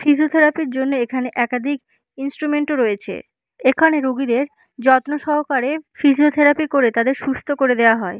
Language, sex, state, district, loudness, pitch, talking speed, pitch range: Bengali, female, West Bengal, Malda, -18 LUFS, 275 Hz, 140 wpm, 250-295 Hz